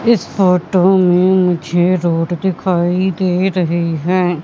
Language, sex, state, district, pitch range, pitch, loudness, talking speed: Hindi, female, Madhya Pradesh, Katni, 175-185 Hz, 180 Hz, -14 LUFS, 120 wpm